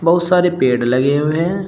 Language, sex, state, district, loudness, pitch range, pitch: Hindi, male, Uttar Pradesh, Shamli, -15 LUFS, 130-175 Hz, 165 Hz